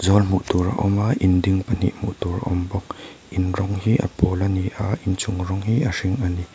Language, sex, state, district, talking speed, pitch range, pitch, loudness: Mizo, male, Mizoram, Aizawl, 245 wpm, 90-105 Hz, 95 Hz, -22 LUFS